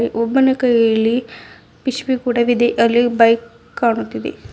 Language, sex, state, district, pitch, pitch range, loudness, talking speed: Kannada, female, Karnataka, Bidar, 235 Hz, 230-250 Hz, -16 LUFS, 95 wpm